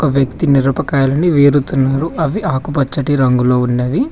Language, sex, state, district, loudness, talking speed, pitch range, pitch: Telugu, male, Telangana, Mahabubabad, -14 LUFS, 100 wpm, 135-150 Hz, 140 Hz